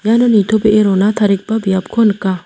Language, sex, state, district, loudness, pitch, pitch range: Garo, female, Meghalaya, South Garo Hills, -13 LUFS, 210 Hz, 195-220 Hz